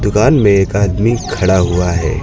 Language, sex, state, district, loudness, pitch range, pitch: Hindi, male, Uttar Pradesh, Lucknow, -13 LUFS, 90-105 Hz, 100 Hz